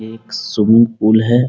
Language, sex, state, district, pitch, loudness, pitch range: Hindi, male, Bihar, Muzaffarpur, 110 Hz, -13 LUFS, 110-115 Hz